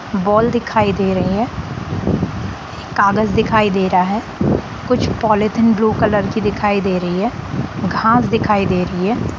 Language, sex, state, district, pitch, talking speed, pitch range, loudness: Hindi, female, Bihar, Sitamarhi, 205 Hz, 160 wpm, 195-220 Hz, -16 LUFS